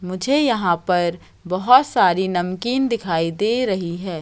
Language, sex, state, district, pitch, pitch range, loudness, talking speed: Hindi, female, Madhya Pradesh, Katni, 185 Hz, 175-235 Hz, -19 LUFS, 140 wpm